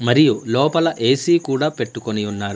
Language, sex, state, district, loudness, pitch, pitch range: Telugu, male, Andhra Pradesh, Manyam, -18 LUFS, 130 Hz, 115-150 Hz